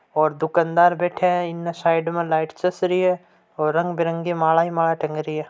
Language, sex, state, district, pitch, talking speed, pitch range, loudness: Hindi, male, Rajasthan, Churu, 170 Hz, 220 wpm, 160-175 Hz, -21 LUFS